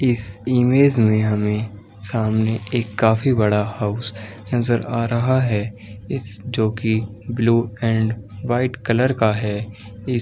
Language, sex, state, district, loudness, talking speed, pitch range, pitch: Hindi, male, Chhattisgarh, Balrampur, -20 LUFS, 135 wpm, 105-120 Hz, 110 Hz